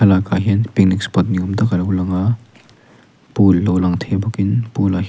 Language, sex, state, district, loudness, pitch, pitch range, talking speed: Mizo, male, Mizoram, Aizawl, -17 LUFS, 100 Hz, 95-110 Hz, 225 wpm